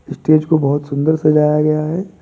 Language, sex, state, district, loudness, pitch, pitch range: Hindi, male, Uttar Pradesh, Budaun, -15 LUFS, 155 Hz, 150-155 Hz